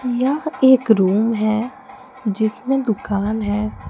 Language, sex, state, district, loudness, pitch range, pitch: Hindi, female, Jharkhand, Palamu, -18 LUFS, 215-260 Hz, 230 Hz